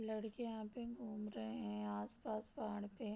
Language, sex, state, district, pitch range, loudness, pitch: Hindi, female, Bihar, Sitamarhi, 205-225 Hz, -44 LUFS, 215 Hz